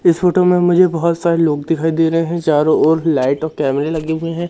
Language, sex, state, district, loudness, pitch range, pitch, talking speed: Hindi, male, Madhya Pradesh, Umaria, -15 LUFS, 155-170 Hz, 165 Hz, 255 wpm